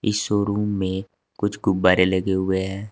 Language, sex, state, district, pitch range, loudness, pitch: Hindi, male, Uttar Pradesh, Saharanpur, 95-105 Hz, -22 LUFS, 95 Hz